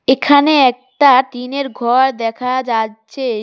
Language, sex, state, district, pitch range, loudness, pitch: Bengali, female, West Bengal, Cooch Behar, 240-265 Hz, -14 LUFS, 255 Hz